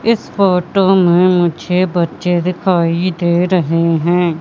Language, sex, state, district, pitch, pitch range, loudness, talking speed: Hindi, female, Madhya Pradesh, Katni, 180 Hz, 170-185 Hz, -14 LUFS, 120 wpm